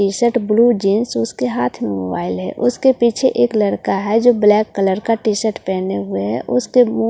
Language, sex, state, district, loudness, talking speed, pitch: Hindi, female, Delhi, New Delhi, -16 LUFS, 205 wpm, 210 Hz